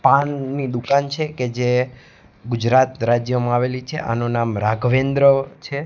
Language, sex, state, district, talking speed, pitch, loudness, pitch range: Gujarati, male, Gujarat, Gandhinagar, 135 wpm, 125 Hz, -19 LUFS, 120-140 Hz